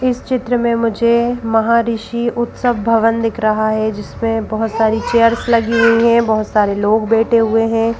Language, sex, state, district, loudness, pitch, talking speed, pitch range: Hindi, female, Madhya Pradesh, Bhopal, -15 LUFS, 230 Hz, 175 wpm, 220-235 Hz